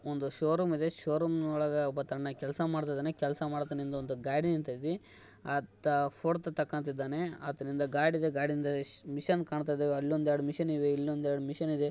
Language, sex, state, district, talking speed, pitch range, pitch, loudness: Kannada, male, Karnataka, Raichur, 170 wpm, 140-155 Hz, 145 Hz, -33 LUFS